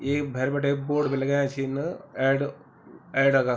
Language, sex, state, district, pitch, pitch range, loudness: Garhwali, male, Uttarakhand, Tehri Garhwal, 140 Hz, 135-140 Hz, -26 LUFS